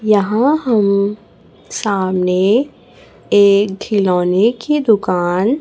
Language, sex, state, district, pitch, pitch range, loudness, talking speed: Hindi, female, Chhattisgarh, Raipur, 205 Hz, 190-230 Hz, -15 LUFS, 75 wpm